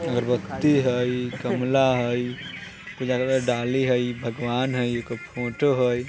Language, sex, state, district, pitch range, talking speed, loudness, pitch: Bajjika, male, Bihar, Vaishali, 120-130 Hz, 140 wpm, -24 LUFS, 125 Hz